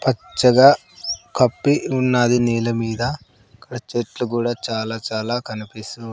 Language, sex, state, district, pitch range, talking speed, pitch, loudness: Telugu, male, Andhra Pradesh, Sri Satya Sai, 115-125 Hz, 120 wpm, 120 Hz, -19 LUFS